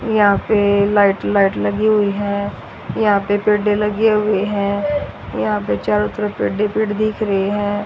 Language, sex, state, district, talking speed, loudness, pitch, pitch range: Hindi, female, Haryana, Rohtak, 175 wpm, -17 LUFS, 205 Hz, 200-210 Hz